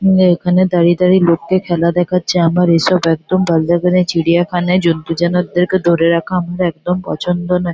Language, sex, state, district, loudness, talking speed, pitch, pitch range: Bengali, female, West Bengal, Kolkata, -14 LUFS, 185 wpm, 175 Hz, 170-180 Hz